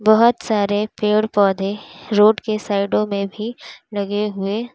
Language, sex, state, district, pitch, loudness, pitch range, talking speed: Hindi, female, Uttar Pradesh, Lalitpur, 210 Hz, -19 LUFS, 200-215 Hz, 140 wpm